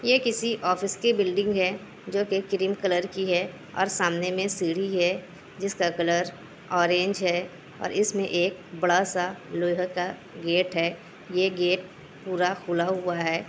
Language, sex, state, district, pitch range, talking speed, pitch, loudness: Hindi, female, Bihar, Kishanganj, 175-195 Hz, 150 wpm, 180 Hz, -26 LUFS